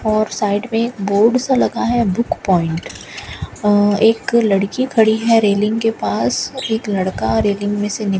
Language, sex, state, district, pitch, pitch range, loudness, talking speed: Hindi, female, Rajasthan, Bikaner, 215 Hz, 200-225 Hz, -16 LUFS, 170 wpm